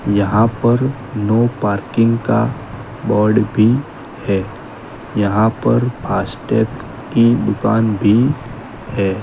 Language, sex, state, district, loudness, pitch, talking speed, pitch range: Hindi, male, Gujarat, Gandhinagar, -16 LUFS, 115 Hz, 105 wpm, 105-120 Hz